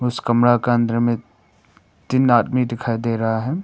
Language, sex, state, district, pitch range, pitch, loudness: Hindi, male, Arunachal Pradesh, Papum Pare, 115-120 Hz, 120 Hz, -19 LUFS